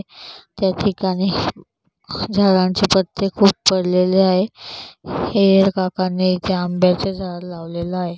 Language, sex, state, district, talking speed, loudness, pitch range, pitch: Marathi, female, Maharashtra, Chandrapur, 105 wpm, -18 LUFS, 180-195 Hz, 185 Hz